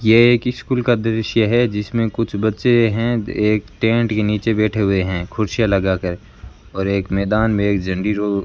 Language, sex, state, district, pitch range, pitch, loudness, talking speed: Hindi, male, Rajasthan, Bikaner, 100-115 Hz, 110 Hz, -18 LUFS, 200 wpm